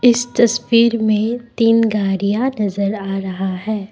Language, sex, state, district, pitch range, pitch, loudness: Hindi, female, Assam, Kamrup Metropolitan, 200-235 Hz, 220 Hz, -17 LUFS